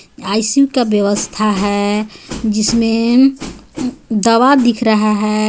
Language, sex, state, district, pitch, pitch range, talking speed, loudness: Hindi, female, Jharkhand, Garhwa, 225 Hz, 215-250 Hz, 100 wpm, -14 LUFS